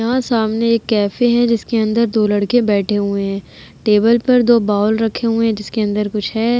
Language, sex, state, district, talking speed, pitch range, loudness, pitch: Hindi, female, Uttar Pradesh, Jalaun, 210 wpm, 210-235 Hz, -16 LUFS, 225 Hz